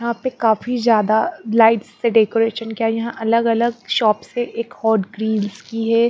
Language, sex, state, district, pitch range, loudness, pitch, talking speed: Hindi, female, Bihar, Patna, 220-235 Hz, -18 LUFS, 225 Hz, 175 wpm